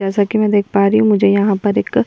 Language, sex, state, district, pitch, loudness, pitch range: Hindi, female, Bihar, Kishanganj, 205 Hz, -14 LUFS, 200-210 Hz